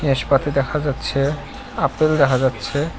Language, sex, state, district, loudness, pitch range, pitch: Bengali, male, West Bengal, Cooch Behar, -19 LUFS, 135-145 Hz, 140 Hz